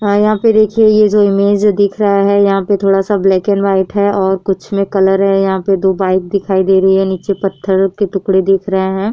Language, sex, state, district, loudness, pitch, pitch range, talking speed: Hindi, female, Uttar Pradesh, Jyotiba Phule Nagar, -12 LUFS, 195 Hz, 190-205 Hz, 250 wpm